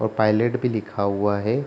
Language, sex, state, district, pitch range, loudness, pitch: Hindi, male, Bihar, Kishanganj, 105-115 Hz, -22 LUFS, 110 Hz